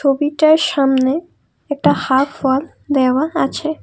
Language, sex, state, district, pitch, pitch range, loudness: Bengali, female, Assam, Kamrup Metropolitan, 285 Hz, 265-310 Hz, -16 LUFS